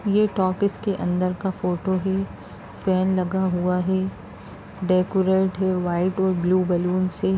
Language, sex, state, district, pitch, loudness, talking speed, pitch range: Hindi, female, Bihar, Jamui, 185 Hz, -23 LUFS, 145 wpm, 180-190 Hz